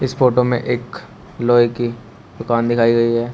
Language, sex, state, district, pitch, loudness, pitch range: Hindi, male, Uttar Pradesh, Shamli, 120 Hz, -17 LUFS, 115-120 Hz